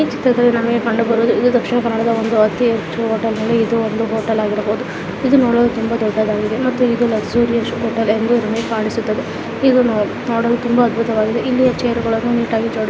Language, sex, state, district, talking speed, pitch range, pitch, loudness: Kannada, female, Karnataka, Dakshina Kannada, 115 wpm, 225-240 Hz, 230 Hz, -16 LUFS